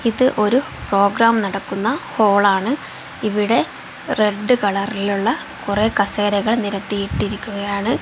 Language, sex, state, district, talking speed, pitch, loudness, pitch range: Malayalam, female, Kerala, Kozhikode, 80 wpm, 210 Hz, -19 LUFS, 200-230 Hz